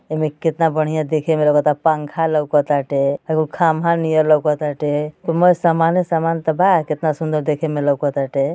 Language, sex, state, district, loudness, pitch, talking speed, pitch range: Bhojpuri, male, Uttar Pradesh, Ghazipur, -17 LUFS, 155 Hz, 170 wpm, 150-165 Hz